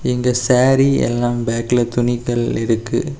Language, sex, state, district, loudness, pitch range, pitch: Tamil, male, Tamil Nadu, Kanyakumari, -17 LUFS, 115-125 Hz, 120 Hz